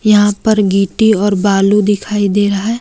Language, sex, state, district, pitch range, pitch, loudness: Hindi, female, Jharkhand, Deoghar, 200-210 Hz, 205 Hz, -12 LUFS